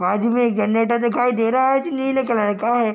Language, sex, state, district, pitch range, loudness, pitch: Hindi, male, Bihar, Gopalganj, 225-250 Hz, -19 LUFS, 235 Hz